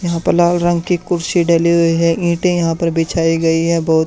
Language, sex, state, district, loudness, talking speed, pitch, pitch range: Hindi, male, Haryana, Charkhi Dadri, -15 LUFS, 235 wpm, 170 Hz, 165-175 Hz